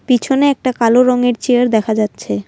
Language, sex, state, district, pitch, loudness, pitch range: Bengali, female, Assam, Kamrup Metropolitan, 245 Hz, -14 LUFS, 220-250 Hz